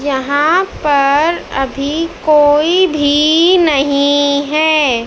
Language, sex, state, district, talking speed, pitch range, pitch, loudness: Hindi, male, Madhya Pradesh, Dhar, 85 wpm, 280-315 Hz, 295 Hz, -12 LUFS